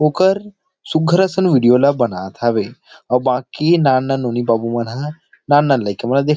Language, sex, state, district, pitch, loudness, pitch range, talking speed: Chhattisgarhi, male, Chhattisgarh, Rajnandgaon, 135 Hz, -16 LUFS, 120-160 Hz, 200 wpm